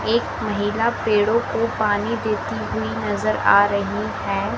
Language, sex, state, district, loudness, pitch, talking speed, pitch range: Hindi, female, Madhya Pradesh, Dhar, -21 LUFS, 210 Hz, 145 wpm, 200-225 Hz